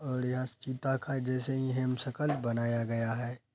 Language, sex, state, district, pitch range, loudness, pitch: Hindi, female, Bihar, Araria, 120-130 Hz, -33 LUFS, 130 Hz